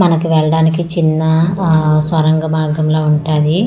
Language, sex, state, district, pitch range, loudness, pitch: Telugu, female, Andhra Pradesh, Manyam, 155-165 Hz, -13 LUFS, 160 Hz